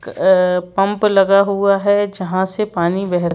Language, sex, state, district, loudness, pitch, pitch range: Hindi, male, Madhya Pradesh, Bhopal, -16 LUFS, 195 Hz, 185-200 Hz